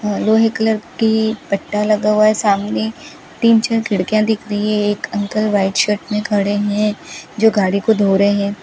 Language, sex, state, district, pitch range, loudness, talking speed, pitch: Hindi, female, Rajasthan, Bikaner, 200-220 Hz, -16 LUFS, 190 wpm, 210 Hz